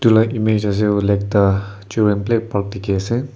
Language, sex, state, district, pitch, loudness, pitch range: Nagamese, male, Nagaland, Kohima, 100 Hz, -18 LUFS, 100-110 Hz